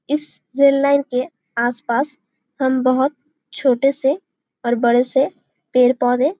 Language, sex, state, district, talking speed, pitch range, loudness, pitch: Hindi, female, Chhattisgarh, Bastar, 120 wpm, 250-280 Hz, -18 LUFS, 270 Hz